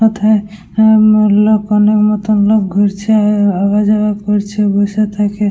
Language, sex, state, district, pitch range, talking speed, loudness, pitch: Bengali, female, West Bengal, Dakshin Dinajpur, 205-215 Hz, 110 wpm, -12 LUFS, 210 Hz